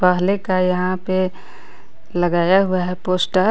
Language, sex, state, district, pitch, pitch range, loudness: Hindi, female, Jharkhand, Garhwa, 185 Hz, 180-190 Hz, -19 LUFS